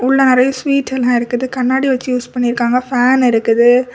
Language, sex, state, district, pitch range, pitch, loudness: Tamil, female, Tamil Nadu, Kanyakumari, 245-260 Hz, 250 Hz, -14 LUFS